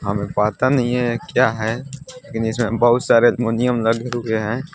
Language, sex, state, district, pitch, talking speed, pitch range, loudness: Hindi, male, Odisha, Nuapada, 120 Hz, 175 wpm, 115-125 Hz, -19 LUFS